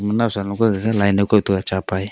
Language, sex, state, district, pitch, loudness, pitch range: Wancho, male, Arunachal Pradesh, Longding, 100 Hz, -19 LUFS, 95-105 Hz